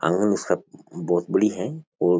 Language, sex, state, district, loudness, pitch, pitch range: Rajasthani, male, Rajasthan, Churu, -24 LUFS, 90 Hz, 90-105 Hz